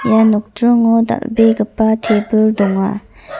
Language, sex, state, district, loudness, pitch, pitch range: Garo, female, Meghalaya, North Garo Hills, -14 LUFS, 220 Hz, 210-230 Hz